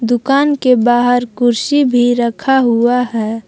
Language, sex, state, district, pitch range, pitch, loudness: Hindi, female, Jharkhand, Palamu, 235-255 Hz, 245 Hz, -13 LUFS